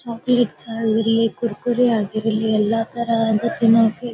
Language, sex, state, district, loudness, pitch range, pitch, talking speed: Kannada, female, Karnataka, Bijapur, -19 LUFS, 220-235 Hz, 225 Hz, 100 wpm